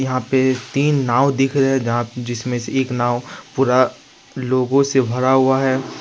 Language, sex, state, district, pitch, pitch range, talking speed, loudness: Hindi, male, Jharkhand, Ranchi, 130 Hz, 125-135 Hz, 180 wpm, -18 LUFS